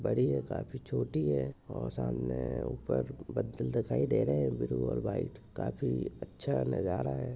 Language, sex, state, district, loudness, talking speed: Hindi, male, Maharashtra, Nagpur, -34 LUFS, 165 wpm